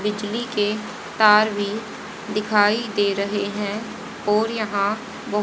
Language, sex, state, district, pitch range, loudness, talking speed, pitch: Hindi, female, Haryana, Rohtak, 205-220 Hz, -21 LUFS, 110 wpm, 210 Hz